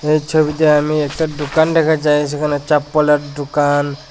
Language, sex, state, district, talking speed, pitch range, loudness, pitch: Bengali, male, Tripura, West Tripura, 160 wpm, 145-155 Hz, -15 LUFS, 150 Hz